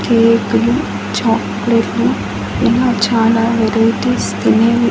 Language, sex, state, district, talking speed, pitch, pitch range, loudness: Telugu, female, Andhra Pradesh, Annamaya, 75 wpm, 230 Hz, 225-235 Hz, -14 LUFS